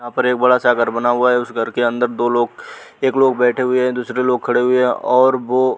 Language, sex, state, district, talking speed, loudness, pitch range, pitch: Hindi, male, Uttar Pradesh, Muzaffarnagar, 300 wpm, -16 LUFS, 120-125 Hz, 125 Hz